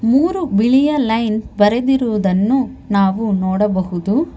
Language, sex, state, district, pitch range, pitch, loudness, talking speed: Kannada, female, Karnataka, Bangalore, 200-265 Hz, 220 Hz, -16 LUFS, 80 wpm